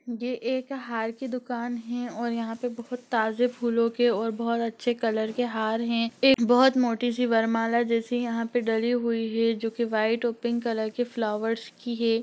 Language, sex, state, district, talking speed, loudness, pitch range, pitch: Hindi, female, Bihar, Gaya, 195 wpm, -26 LUFS, 225-245 Hz, 235 Hz